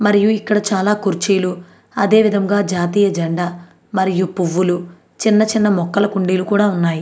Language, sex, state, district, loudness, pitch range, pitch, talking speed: Telugu, female, Andhra Pradesh, Anantapur, -16 LUFS, 180-205 Hz, 195 Hz, 135 wpm